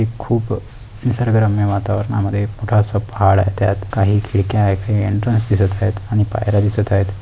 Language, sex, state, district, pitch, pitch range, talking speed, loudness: Marathi, male, Maharashtra, Dhule, 105 Hz, 100-110 Hz, 150 wpm, -17 LUFS